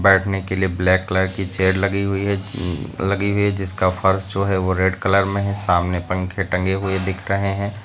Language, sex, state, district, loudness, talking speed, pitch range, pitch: Hindi, male, Uttar Pradesh, Lucknow, -20 LUFS, 230 wpm, 95-100 Hz, 95 Hz